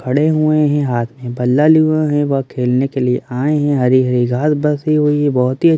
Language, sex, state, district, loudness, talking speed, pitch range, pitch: Hindi, male, Bihar, Katihar, -15 LUFS, 240 wpm, 125-150 Hz, 140 Hz